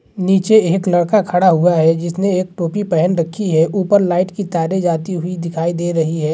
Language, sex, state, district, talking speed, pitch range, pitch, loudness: Hindi, male, Bihar, Gaya, 210 wpm, 170-190 Hz, 180 Hz, -16 LUFS